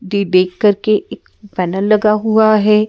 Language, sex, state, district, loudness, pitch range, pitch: Hindi, female, Madhya Pradesh, Bhopal, -14 LUFS, 195-215 Hz, 210 Hz